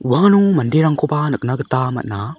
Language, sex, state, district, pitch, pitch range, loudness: Garo, male, Meghalaya, South Garo Hills, 140 Hz, 125-155 Hz, -16 LUFS